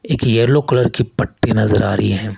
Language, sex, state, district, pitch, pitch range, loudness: Hindi, male, Rajasthan, Jaipur, 115 Hz, 105-125 Hz, -16 LUFS